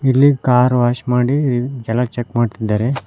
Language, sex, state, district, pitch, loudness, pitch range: Kannada, male, Karnataka, Koppal, 125 Hz, -16 LUFS, 120-130 Hz